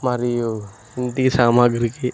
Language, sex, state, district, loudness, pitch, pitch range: Telugu, male, Andhra Pradesh, Sri Satya Sai, -19 LUFS, 120 Hz, 120-125 Hz